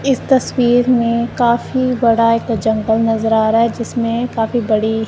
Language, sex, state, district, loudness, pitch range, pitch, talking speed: Hindi, male, Punjab, Kapurthala, -15 LUFS, 225-245 Hz, 230 Hz, 165 wpm